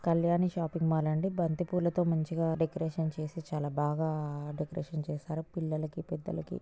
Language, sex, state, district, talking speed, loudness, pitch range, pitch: Telugu, female, Telangana, Nalgonda, 135 wpm, -33 LUFS, 155-170 Hz, 160 Hz